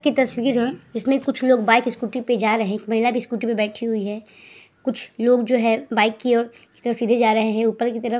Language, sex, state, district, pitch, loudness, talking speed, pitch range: Hindi, female, Uttar Pradesh, Hamirpur, 235 Hz, -21 LUFS, 265 wpm, 225-245 Hz